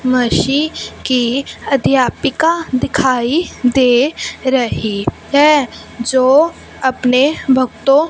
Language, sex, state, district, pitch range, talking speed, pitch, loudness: Hindi, female, Punjab, Fazilka, 255-290 Hz, 75 wpm, 260 Hz, -14 LUFS